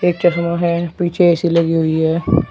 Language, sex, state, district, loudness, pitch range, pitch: Hindi, male, Uttar Pradesh, Shamli, -16 LUFS, 165-175 Hz, 170 Hz